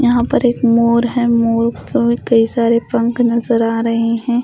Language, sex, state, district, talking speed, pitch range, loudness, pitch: Hindi, female, Bihar, Patna, 190 wpm, 230-240 Hz, -15 LUFS, 235 Hz